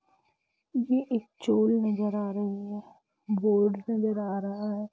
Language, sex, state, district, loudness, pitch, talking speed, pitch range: Hindi, female, Jharkhand, Jamtara, -28 LUFS, 210 Hz, 145 wpm, 205-230 Hz